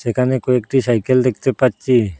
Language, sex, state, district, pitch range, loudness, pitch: Bengali, male, Assam, Hailakandi, 120-130 Hz, -17 LUFS, 125 Hz